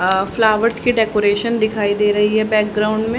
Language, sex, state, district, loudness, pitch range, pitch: Hindi, female, Haryana, Charkhi Dadri, -16 LUFS, 210-225 Hz, 215 Hz